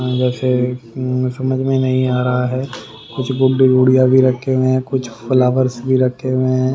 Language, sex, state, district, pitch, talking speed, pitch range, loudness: Hindi, male, Haryana, Rohtak, 130 Hz, 175 wpm, 125-130 Hz, -16 LUFS